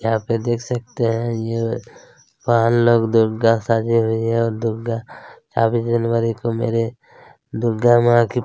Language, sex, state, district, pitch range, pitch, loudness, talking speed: Hindi, male, Chhattisgarh, Kabirdham, 115-120 Hz, 115 Hz, -19 LUFS, 150 wpm